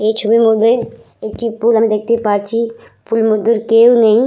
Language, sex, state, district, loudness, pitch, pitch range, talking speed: Bengali, female, West Bengal, Purulia, -13 LUFS, 225 Hz, 220-230 Hz, 170 wpm